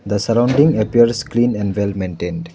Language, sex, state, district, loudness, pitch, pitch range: English, male, Arunachal Pradesh, Lower Dibang Valley, -16 LUFS, 105 Hz, 100-120 Hz